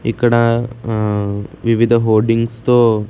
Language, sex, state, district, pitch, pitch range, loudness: Telugu, male, Andhra Pradesh, Sri Satya Sai, 115 Hz, 110-115 Hz, -15 LUFS